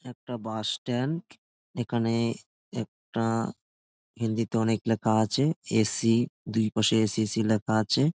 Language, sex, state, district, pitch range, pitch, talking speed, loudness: Bengali, male, West Bengal, Jalpaiguri, 110-120 Hz, 115 Hz, 140 wpm, -28 LUFS